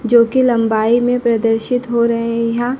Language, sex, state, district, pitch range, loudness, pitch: Hindi, male, Madhya Pradesh, Dhar, 230-245 Hz, -15 LUFS, 235 Hz